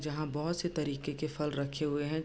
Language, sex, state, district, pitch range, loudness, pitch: Hindi, female, Bihar, Darbhanga, 145-155 Hz, -35 LUFS, 150 Hz